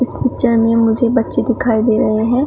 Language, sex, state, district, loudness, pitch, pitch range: Hindi, female, Uttar Pradesh, Shamli, -14 LUFS, 235 Hz, 225-245 Hz